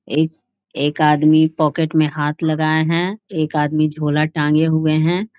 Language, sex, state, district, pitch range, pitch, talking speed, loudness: Hindi, female, Bihar, Jahanabad, 150-160 Hz, 155 Hz, 165 wpm, -17 LUFS